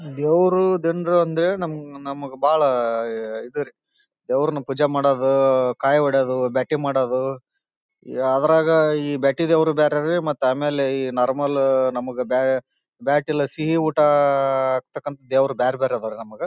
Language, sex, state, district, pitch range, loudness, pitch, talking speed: Kannada, male, Karnataka, Bellary, 130-155 Hz, -20 LUFS, 140 Hz, 150 wpm